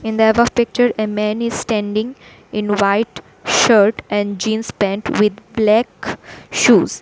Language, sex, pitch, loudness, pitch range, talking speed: English, female, 215 Hz, -16 LUFS, 205-230 Hz, 145 wpm